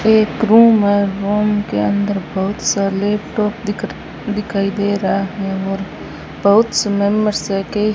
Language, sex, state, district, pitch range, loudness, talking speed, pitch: Hindi, female, Rajasthan, Bikaner, 195-210 Hz, -16 LUFS, 135 wpm, 205 Hz